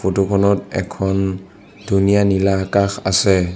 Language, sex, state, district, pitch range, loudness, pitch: Assamese, male, Assam, Sonitpur, 95-100 Hz, -17 LUFS, 95 Hz